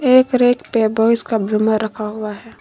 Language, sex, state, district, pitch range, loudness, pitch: Hindi, female, Jharkhand, Garhwa, 215-240 Hz, -17 LUFS, 220 Hz